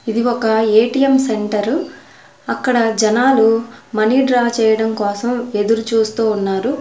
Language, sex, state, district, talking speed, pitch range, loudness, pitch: Telugu, female, Andhra Pradesh, Sri Satya Sai, 115 wpm, 220-245 Hz, -16 LUFS, 225 Hz